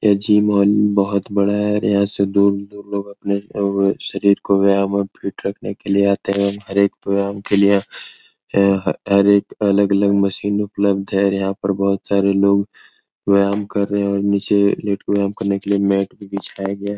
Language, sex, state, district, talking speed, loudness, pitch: Hindi, male, Bihar, Araria, 180 wpm, -18 LUFS, 100 Hz